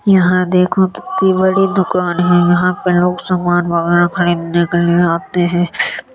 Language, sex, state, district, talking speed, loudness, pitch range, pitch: Hindi, male, Uttar Pradesh, Jyotiba Phule Nagar, 155 wpm, -14 LUFS, 175-185 Hz, 180 Hz